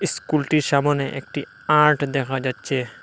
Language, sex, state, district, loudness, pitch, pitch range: Bengali, male, Assam, Hailakandi, -21 LUFS, 140 Hz, 135-150 Hz